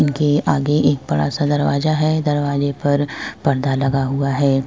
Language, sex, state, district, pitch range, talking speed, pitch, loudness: Hindi, female, Uttar Pradesh, Jyotiba Phule Nagar, 135-145 Hz, 165 wpm, 140 Hz, -18 LUFS